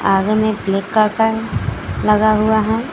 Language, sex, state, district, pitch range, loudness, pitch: Hindi, female, Jharkhand, Garhwa, 195-220 Hz, -16 LUFS, 215 Hz